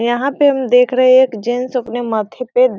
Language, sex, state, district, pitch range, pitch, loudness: Hindi, female, Bihar, Sitamarhi, 240-255 Hz, 250 Hz, -14 LUFS